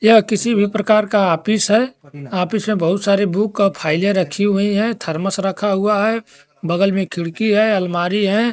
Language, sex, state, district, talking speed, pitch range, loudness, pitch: Hindi, male, Bihar, Kaimur, 190 wpm, 180-215 Hz, -17 LUFS, 200 Hz